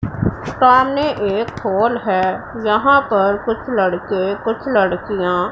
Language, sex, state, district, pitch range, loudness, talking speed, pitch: Hindi, female, Punjab, Pathankot, 190-235 Hz, -17 LUFS, 110 wpm, 210 Hz